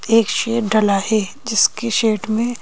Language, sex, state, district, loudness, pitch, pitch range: Hindi, female, Madhya Pradesh, Bhopal, -17 LUFS, 220 Hz, 215-230 Hz